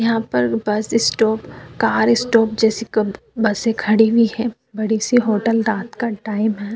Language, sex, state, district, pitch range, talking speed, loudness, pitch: Hindi, female, Uttar Pradesh, Jyotiba Phule Nagar, 215-230 Hz, 170 wpm, -18 LUFS, 220 Hz